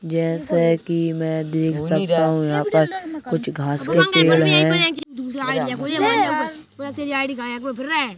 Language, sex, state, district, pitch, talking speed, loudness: Hindi, male, Madhya Pradesh, Bhopal, 170 Hz, 95 wpm, -19 LUFS